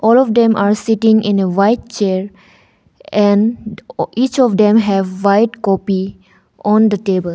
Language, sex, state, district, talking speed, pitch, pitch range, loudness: English, female, Arunachal Pradesh, Longding, 155 wpm, 210 Hz, 195-225 Hz, -14 LUFS